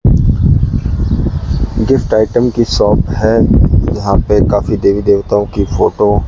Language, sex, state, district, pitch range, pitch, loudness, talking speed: Hindi, male, Rajasthan, Bikaner, 100-110 Hz, 105 Hz, -12 LUFS, 125 wpm